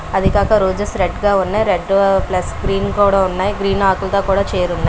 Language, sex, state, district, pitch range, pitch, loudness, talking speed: Telugu, female, Andhra Pradesh, Visakhapatnam, 185-200 Hz, 195 Hz, -16 LUFS, 185 wpm